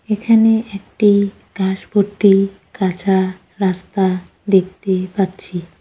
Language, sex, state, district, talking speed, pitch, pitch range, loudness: Bengali, female, West Bengal, Cooch Behar, 85 wpm, 195 Hz, 190-205 Hz, -17 LUFS